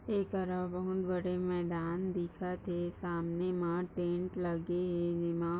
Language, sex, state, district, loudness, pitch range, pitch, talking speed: Hindi, female, Maharashtra, Dhule, -36 LUFS, 175-180 Hz, 180 Hz, 120 wpm